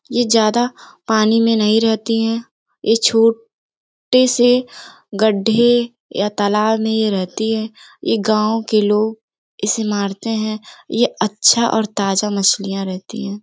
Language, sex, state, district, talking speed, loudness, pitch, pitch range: Hindi, female, Uttar Pradesh, Gorakhpur, 145 wpm, -17 LUFS, 220 Hz, 210-230 Hz